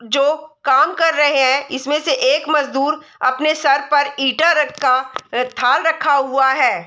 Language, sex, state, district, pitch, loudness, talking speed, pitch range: Hindi, female, Bihar, Saharsa, 285 Hz, -16 LUFS, 155 wpm, 265-310 Hz